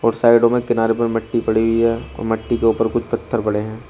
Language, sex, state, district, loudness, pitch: Hindi, male, Uttar Pradesh, Shamli, -18 LUFS, 115 Hz